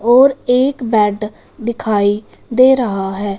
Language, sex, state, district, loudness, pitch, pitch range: Hindi, female, Punjab, Fazilka, -15 LUFS, 230 Hz, 205-250 Hz